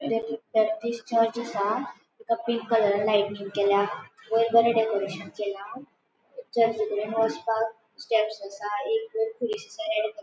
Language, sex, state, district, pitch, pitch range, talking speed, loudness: Konkani, female, Goa, North and South Goa, 225 Hz, 210-235 Hz, 130 wpm, -26 LUFS